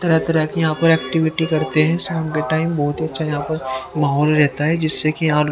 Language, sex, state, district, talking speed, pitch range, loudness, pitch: Hindi, male, Haryana, Rohtak, 230 wpm, 150-160 Hz, -18 LUFS, 155 Hz